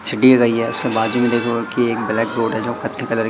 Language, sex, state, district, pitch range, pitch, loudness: Hindi, male, Madhya Pradesh, Katni, 110-120 Hz, 115 Hz, -17 LUFS